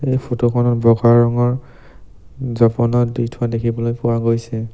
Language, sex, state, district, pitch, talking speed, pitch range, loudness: Assamese, male, Assam, Sonitpur, 120 Hz, 125 wpm, 115-120 Hz, -17 LUFS